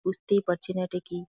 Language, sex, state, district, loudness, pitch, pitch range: Bengali, female, West Bengal, Jalpaiguri, -29 LUFS, 180 Hz, 180-185 Hz